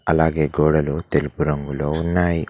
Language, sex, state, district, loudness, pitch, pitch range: Telugu, male, Telangana, Mahabubabad, -20 LUFS, 80 Hz, 75-80 Hz